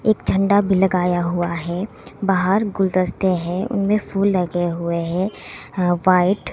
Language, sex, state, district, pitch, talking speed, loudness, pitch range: Hindi, female, Himachal Pradesh, Shimla, 185 Hz, 145 wpm, -19 LUFS, 175-195 Hz